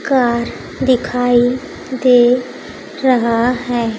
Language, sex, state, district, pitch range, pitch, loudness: Hindi, female, Bihar, Kaimur, 240-255 Hz, 245 Hz, -15 LUFS